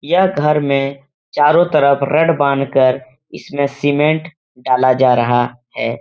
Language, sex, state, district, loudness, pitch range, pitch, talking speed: Hindi, male, Uttar Pradesh, Etah, -15 LUFS, 130-150 Hz, 140 Hz, 130 wpm